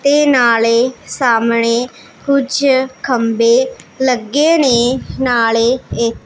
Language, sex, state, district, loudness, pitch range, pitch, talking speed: Punjabi, female, Punjab, Pathankot, -14 LUFS, 230-275 Hz, 250 Hz, 85 wpm